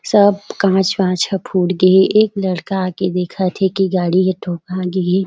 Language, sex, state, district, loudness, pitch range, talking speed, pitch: Chhattisgarhi, female, Chhattisgarh, Raigarh, -16 LUFS, 185-195 Hz, 205 wpm, 185 Hz